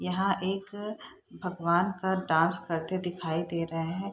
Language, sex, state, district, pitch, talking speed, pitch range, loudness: Hindi, female, Bihar, Saharsa, 180 Hz, 145 wpm, 165-190 Hz, -29 LUFS